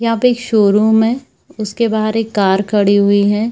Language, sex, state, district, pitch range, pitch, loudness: Hindi, female, Chhattisgarh, Bilaspur, 205-230 Hz, 215 Hz, -13 LUFS